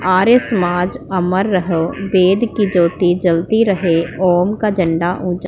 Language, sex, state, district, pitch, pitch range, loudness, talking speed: Punjabi, female, Punjab, Pathankot, 185 Hz, 175-195 Hz, -15 LUFS, 140 wpm